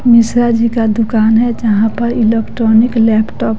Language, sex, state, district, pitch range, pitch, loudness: Hindi, female, Bihar, West Champaran, 220-235 Hz, 225 Hz, -12 LUFS